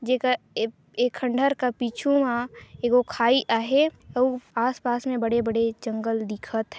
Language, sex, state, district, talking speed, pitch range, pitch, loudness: Chhattisgarhi, female, Chhattisgarh, Sarguja, 150 wpm, 230-255 Hz, 245 Hz, -25 LUFS